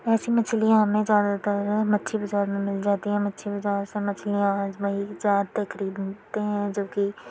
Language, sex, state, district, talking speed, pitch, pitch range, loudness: Hindi, female, Uttar Pradesh, Jyotiba Phule Nagar, 180 wpm, 205 Hz, 200-210 Hz, -25 LUFS